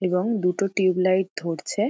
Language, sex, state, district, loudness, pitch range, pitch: Bengali, female, West Bengal, Dakshin Dinajpur, -23 LUFS, 180-195 Hz, 185 Hz